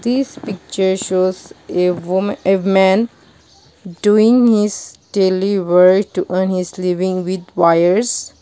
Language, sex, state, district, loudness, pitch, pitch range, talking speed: English, female, Nagaland, Dimapur, -15 LUFS, 190 Hz, 185-205 Hz, 115 wpm